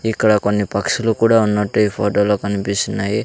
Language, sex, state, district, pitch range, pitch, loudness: Telugu, male, Andhra Pradesh, Sri Satya Sai, 100-110 Hz, 105 Hz, -17 LUFS